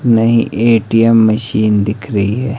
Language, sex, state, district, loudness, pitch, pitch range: Hindi, male, Himachal Pradesh, Shimla, -12 LUFS, 115 Hz, 105-115 Hz